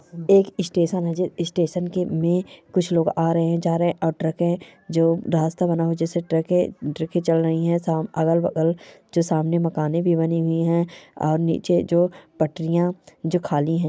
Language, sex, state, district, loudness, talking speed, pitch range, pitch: Hindi, female, Bihar, Darbhanga, -22 LUFS, 175 wpm, 165-175 Hz, 170 Hz